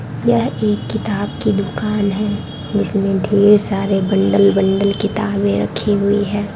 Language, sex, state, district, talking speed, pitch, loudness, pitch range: Hindi, female, Bihar, Darbhanga, 135 wpm, 200 Hz, -16 LUFS, 195-205 Hz